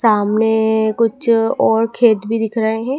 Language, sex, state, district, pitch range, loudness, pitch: Hindi, female, Madhya Pradesh, Dhar, 220-230 Hz, -15 LUFS, 225 Hz